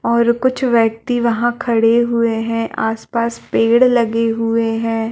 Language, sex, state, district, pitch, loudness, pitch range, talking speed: Hindi, female, Chhattisgarh, Balrampur, 230 Hz, -16 LUFS, 225-235 Hz, 165 wpm